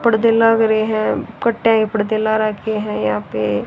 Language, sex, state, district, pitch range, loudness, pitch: Hindi, female, Haryana, Rohtak, 210-225 Hz, -17 LUFS, 220 Hz